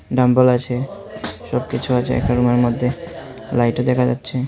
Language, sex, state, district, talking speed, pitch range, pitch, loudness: Bengali, male, Tripura, Unakoti, 135 wpm, 125-130 Hz, 125 Hz, -18 LUFS